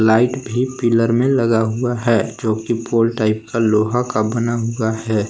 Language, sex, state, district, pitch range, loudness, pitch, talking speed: Hindi, male, Jharkhand, Palamu, 110-120 Hz, -18 LUFS, 115 Hz, 190 wpm